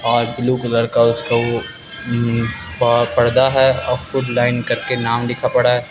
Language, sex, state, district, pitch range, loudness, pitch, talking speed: Hindi, male, Bihar, West Champaran, 115-125 Hz, -17 LUFS, 120 Hz, 175 wpm